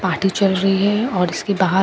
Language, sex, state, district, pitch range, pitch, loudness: Hindi, female, Bihar, Katihar, 185-200 Hz, 195 Hz, -18 LUFS